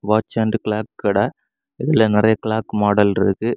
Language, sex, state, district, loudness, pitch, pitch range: Tamil, male, Tamil Nadu, Kanyakumari, -18 LUFS, 110 Hz, 105-110 Hz